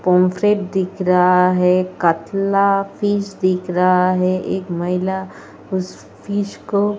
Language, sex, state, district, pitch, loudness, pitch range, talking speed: Hindi, female, Uttar Pradesh, Etah, 185 Hz, -18 LUFS, 180-195 Hz, 120 wpm